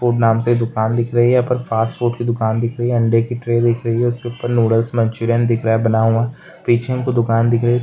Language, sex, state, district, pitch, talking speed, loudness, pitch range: Hindi, male, West Bengal, Jalpaiguri, 120 Hz, 270 wpm, -17 LUFS, 115-120 Hz